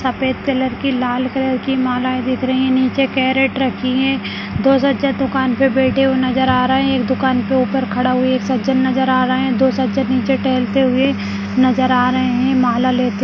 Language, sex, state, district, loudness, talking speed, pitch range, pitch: Kumaoni, female, Uttarakhand, Uttarkashi, -16 LUFS, 220 wpm, 255-265 Hz, 260 Hz